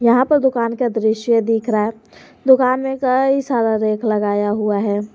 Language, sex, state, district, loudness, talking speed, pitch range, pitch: Hindi, female, Jharkhand, Garhwa, -17 LUFS, 185 wpm, 215-255 Hz, 230 Hz